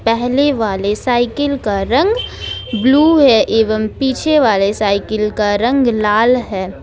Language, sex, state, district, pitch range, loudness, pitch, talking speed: Hindi, female, Jharkhand, Ranchi, 210-270 Hz, -14 LUFS, 230 Hz, 130 wpm